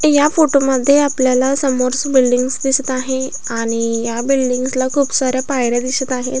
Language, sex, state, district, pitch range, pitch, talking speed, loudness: Marathi, female, Maharashtra, Aurangabad, 250-275 Hz, 260 Hz, 170 wpm, -16 LUFS